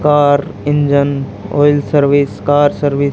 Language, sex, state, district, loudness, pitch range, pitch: Hindi, male, Haryana, Charkhi Dadri, -13 LUFS, 140-145 Hz, 145 Hz